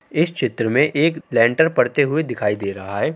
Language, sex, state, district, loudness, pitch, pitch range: Hindi, male, Uttar Pradesh, Deoria, -19 LUFS, 140 Hz, 110-160 Hz